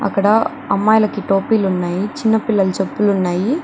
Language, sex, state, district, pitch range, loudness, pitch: Telugu, female, Andhra Pradesh, Chittoor, 195-220 Hz, -16 LUFS, 200 Hz